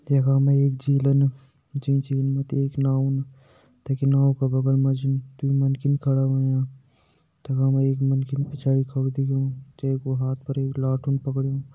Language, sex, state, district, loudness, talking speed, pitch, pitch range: Garhwali, male, Uttarakhand, Uttarkashi, -23 LUFS, 155 wpm, 135 Hz, 135-140 Hz